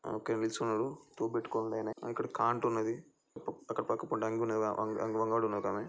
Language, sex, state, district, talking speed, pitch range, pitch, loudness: Telugu, male, Andhra Pradesh, Chittoor, 110 wpm, 110-115 Hz, 110 Hz, -35 LUFS